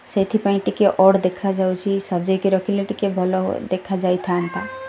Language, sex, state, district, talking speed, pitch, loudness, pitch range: Odia, female, Odisha, Malkangiri, 160 wpm, 190 Hz, -20 LUFS, 185-200 Hz